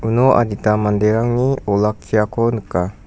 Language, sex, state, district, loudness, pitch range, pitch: Garo, male, Meghalaya, West Garo Hills, -17 LUFS, 105-115 Hz, 105 Hz